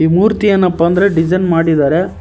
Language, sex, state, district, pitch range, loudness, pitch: Kannada, male, Karnataka, Koppal, 165-195 Hz, -12 LUFS, 175 Hz